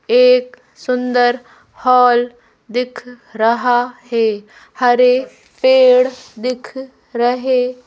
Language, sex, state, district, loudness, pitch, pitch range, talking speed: Hindi, female, Madhya Pradesh, Bhopal, -15 LUFS, 250 Hz, 240-255 Hz, 75 wpm